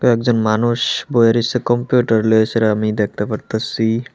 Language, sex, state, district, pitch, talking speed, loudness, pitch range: Bengali, male, Tripura, West Tripura, 115 Hz, 160 wpm, -16 LUFS, 110-120 Hz